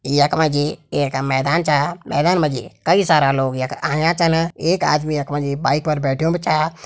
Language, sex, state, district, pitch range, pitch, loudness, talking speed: Hindi, male, Uttarakhand, Tehri Garhwal, 140-165 Hz, 150 Hz, -18 LUFS, 220 wpm